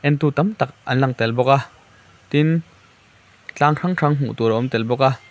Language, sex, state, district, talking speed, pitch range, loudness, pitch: Mizo, male, Mizoram, Aizawl, 215 wpm, 115-145 Hz, -19 LUFS, 130 Hz